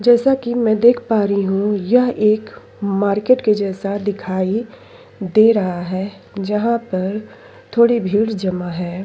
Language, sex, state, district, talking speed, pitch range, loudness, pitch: Hindi, female, Chhattisgarh, Sukma, 145 wpm, 195-235 Hz, -17 LUFS, 210 Hz